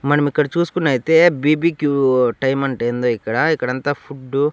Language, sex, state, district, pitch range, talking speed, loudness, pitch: Telugu, male, Andhra Pradesh, Annamaya, 130-155 Hz, 130 wpm, -17 LUFS, 140 Hz